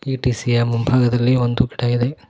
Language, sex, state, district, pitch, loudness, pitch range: Kannada, male, Karnataka, Koppal, 120 Hz, -18 LUFS, 120-130 Hz